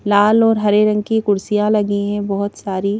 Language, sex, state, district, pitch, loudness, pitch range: Hindi, female, Madhya Pradesh, Bhopal, 205 Hz, -16 LUFS, 205-215 Hz